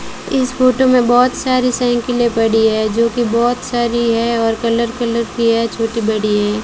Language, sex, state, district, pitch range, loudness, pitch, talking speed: Hindi, female, Rajasthan, Bikaner, 225-245 Hz, -15 LUFS, 235 Hz, 190 wpm